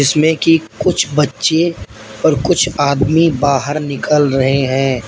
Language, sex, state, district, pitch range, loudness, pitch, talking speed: Hindi, male, Uttar Pradesh, Lalitpur, 135-160 Hz, -14 LUFS, 145 Hz, 130 wpm